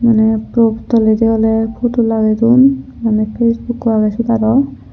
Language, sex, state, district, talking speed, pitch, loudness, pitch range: Chakma, female, Tripura, Unakoti, 145 wpm, 225 Hz, -13 LUFS, 220-235 Hz